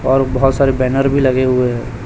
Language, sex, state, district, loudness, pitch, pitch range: Hindi, male, Chhattisgarh, Raipur, -14 LUFS, 130 Hz, 125-135 Hz